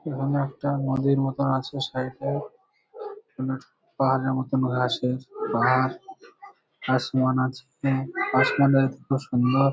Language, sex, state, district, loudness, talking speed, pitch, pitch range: Bengali, male, West Bengal, Kolkata, -25 LUFS, 105 wpm, 135 Hz, 130-145 Hz